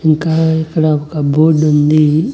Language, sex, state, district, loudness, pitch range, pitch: Telugu, male, Andhra Pradesh, Annamaya, -12 LUFS, 150-160 Hz, 155 Hz